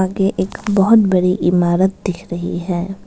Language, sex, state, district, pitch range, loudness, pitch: Hindi, female, Arunachal Pradesh, Lower Dibang Valley, 175-195 Hz, -16 LUFS, 185 Hz